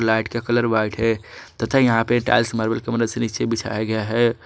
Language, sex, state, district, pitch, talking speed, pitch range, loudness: Hindi, male, Jharkhand, Garhwa, 115 Hz, 230 wpm, 110-120 Hz, -21 LUFS